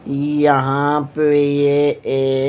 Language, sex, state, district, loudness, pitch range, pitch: Hindi, male, Punjab, Fazilka, -16 LUFS, 140-145 Hz, 145 Hz